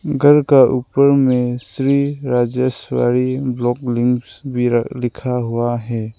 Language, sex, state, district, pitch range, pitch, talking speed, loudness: Hindi, male, Arunachal Pradesh, Lower Dibang Valley, 120-135 Hz, 125 Hz, 125 wpm, -17 LUFS